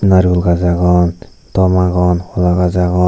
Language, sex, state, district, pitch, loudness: Chakma, male, Tripura, Dhalai, 90 Hz, -13 LUFS